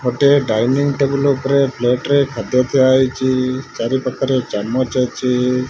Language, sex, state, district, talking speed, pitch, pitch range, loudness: Odia, male, Odisha, Malkangiri, 115 wpm, 130 Hz, 125-140 Hz, -16 LUFS